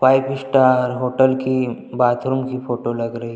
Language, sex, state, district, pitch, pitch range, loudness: Hindi, male, Chhattisgarh, Jashpur, 130 Hz, 120-130 Hz, -19 LUFS